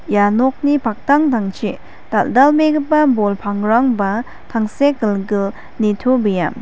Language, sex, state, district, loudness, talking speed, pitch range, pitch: Garo, female, Meghalaya, West Garo Hills, -16 LUFS, 70 wpm, 205-280 Hz, 225 Hz